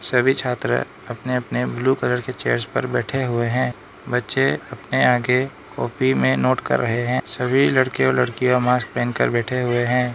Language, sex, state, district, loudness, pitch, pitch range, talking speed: Hindi, male, Arunachal Pradesh, Lower Dibang Valley, -20 LUFS, 125 Hz, 120-130 Hz, 185 wpm